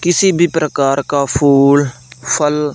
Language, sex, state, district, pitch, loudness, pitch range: Hindi, male, Punjab, Fazilka, 145 Hz, -13 LUFS, 140-160 Hz